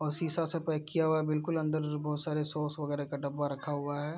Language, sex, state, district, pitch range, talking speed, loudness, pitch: Hindi, male, Bihar, Araria, 145-155 Hz, 270 wpm, -33 LUFS, 150 Hz